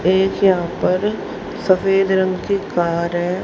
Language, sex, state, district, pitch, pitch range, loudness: Hindi, male, Haryana, Charkhi Dadri, 185 Hz, 175-195 Hz, -18 LUFS